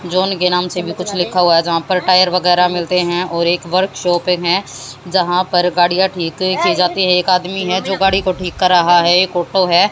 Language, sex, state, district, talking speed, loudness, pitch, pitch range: Hindi, female, Haryana, Jhajjar, 235 wpm, -14 LUFS, 180 Hz, 175-185 Hz